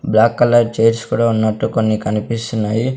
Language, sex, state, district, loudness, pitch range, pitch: Telugu, male, Andhra Pradesh, Sri Satya Sai, -16 LUFS, 110-115 Hz, 115 Hz